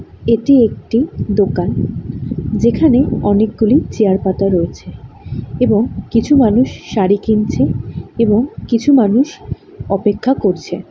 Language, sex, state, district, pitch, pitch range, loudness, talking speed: Bengali, female, West Bengal, Jalpaiguri, 225 Hz, 210-255 Hz, -14 LUFS, 100 wpm